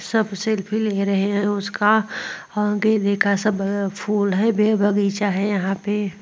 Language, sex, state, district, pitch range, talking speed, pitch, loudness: Hindi, female, Uttar Pradesh, Muzaffarnagar, 200-210 Hz, 145 wpm, 205 Hz, -21 LUFS